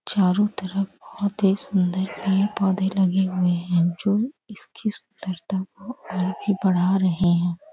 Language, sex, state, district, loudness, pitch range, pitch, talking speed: Hindi, female, West Bengal, North 24 Parganas, -23 LUFS, 185-200 Hz, 190 Hz, 145 wpm